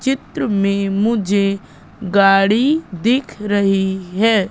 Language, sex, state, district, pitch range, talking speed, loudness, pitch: Hindi, female, Madhya Pradesh, Katni, 195-225 Hz, 95 wpm, -16 LUFS, 200 Hz